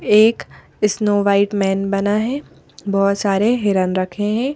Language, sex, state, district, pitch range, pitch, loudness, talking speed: Hindi, female, Madhya Pradesh, Bhopal, 195-215 Hz, 205 Hz, -18 LUFS, 145 wpm